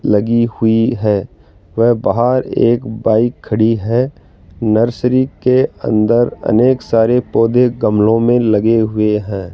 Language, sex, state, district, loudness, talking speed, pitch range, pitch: Hindi, male, Rajasthan, Jaipur, -14 LUFS, 125 wpm, 105-120 Hz, 115 Hz